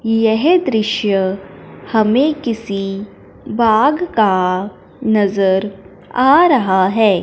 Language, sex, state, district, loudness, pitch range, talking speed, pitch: Hindi, female, Punjab, Fazilka, -15 LUFS, 195-235 Hz, 85 wpm, 215 Hz